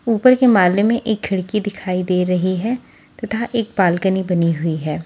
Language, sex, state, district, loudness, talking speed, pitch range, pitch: Hindi, female, Haryana, Jhajjar, -18 LUFS, 190 wpm, 180-225 Hz, 190 Hz